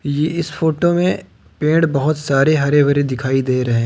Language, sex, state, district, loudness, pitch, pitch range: Hindi, male, Uttar Pradesh, Lucknow, -16 LUFS, 145 Hz, 135-160 Hz